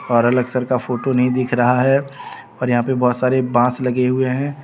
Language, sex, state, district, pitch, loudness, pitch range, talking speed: Hindi, male, Jharkhand, Deoghar, 125 Hz, -18 LUFS, 125-130 Hz, 235 wpm